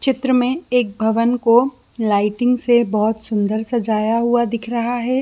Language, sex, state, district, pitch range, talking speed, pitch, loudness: Hindi, female, Jharkhand, Jamtara, 220-245 Hz, 160 wpm, 235 Hz, -18 LUFS